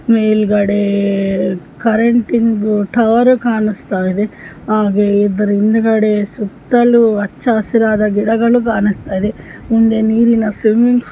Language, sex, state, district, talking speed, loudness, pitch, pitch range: Kannada, female, Karnataka, Shimoga, 85 wpm, -13 LUFS, 215 Hz, 205-230 Hz